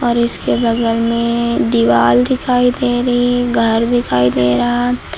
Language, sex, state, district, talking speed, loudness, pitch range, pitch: Hindi, female, Uttar Pradesh, Lucknow, 150 wpm, -14 LUFS, 225-245 Hz, 235 Hz